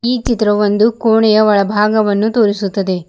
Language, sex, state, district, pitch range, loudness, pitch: Kannada, female, Karnataka, Bidar, 205-220 Hz, -13 LUFS, 210 Hz